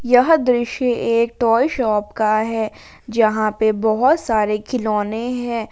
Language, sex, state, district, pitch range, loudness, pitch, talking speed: Hindi, female, Jharkhand, Palamu, 215-245 Hz, -18 LUFS, 230 Hz, 135 wpm